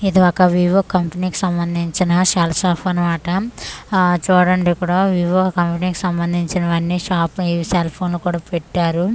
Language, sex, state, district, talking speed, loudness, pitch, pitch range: Telugu, female, Andhra Pradesh, Manyam, 120 wpm, -17 LUFS, 180 Hz, 170-185 Hz